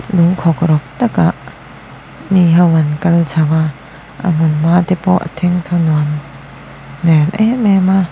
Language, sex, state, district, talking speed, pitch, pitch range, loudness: Mizo, female, Mizoram, Aizawl, 155 wpm, 170 Hz, 155-180 Hz, -13 LUFS